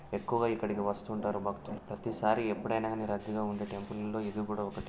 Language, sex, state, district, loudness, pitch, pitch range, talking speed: Telugu, male, Telangana, Nalgonda, -35 LUFS, 105 Hz, 105-110 Hz, 170 wpm